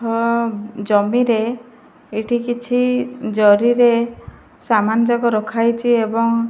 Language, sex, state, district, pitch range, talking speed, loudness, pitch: Odia, female, Odisha, Malkangiri, 220-240 Hz, 120 wpm, -17 LUFS, 230 Hz